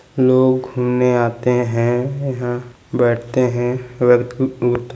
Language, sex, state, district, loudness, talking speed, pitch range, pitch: Hindi, male, Chhattisgarh, Balrampur, -18 LUFS, 110 wpm, 120-130 Hz, 125 Hz